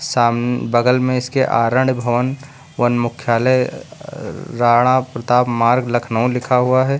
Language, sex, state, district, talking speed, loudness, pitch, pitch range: Hindi, male, Uttar Pradesh, Lucknow, 135 wpm, -16 LUFS, 125 Hz, 120-130 Hz